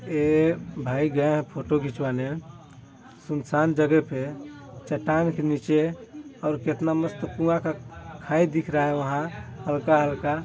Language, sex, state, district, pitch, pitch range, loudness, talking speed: Hindi, male, Chhattisgarh, Balrampur, 150 Hz, 140-160 Hz, -25 LUFS, 130 wpm